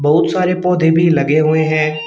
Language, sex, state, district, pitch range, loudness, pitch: Hindi, male, Uttar Pradesh, Shamli, 155-170 Hz, -14 LUFS, 160 Hz